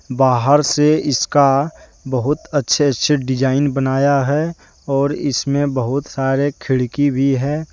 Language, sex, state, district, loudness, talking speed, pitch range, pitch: Hindi, male, Jharkhand, Deoghar, -17 LUFS, 125 wpm, 135-145 Hz, 140 Hz